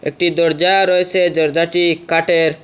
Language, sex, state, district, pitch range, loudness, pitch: Bengali, male, Assam, Hailakandi, 165-180 Hz, -14 LUFS, 170 Hz